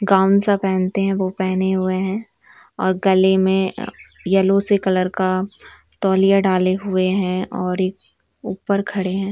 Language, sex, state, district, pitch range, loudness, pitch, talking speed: Hindi, female, Chhattisgarh, Bilaspur, 185-195 Hz, -19 LUFS, 190 Hz, 160 wpm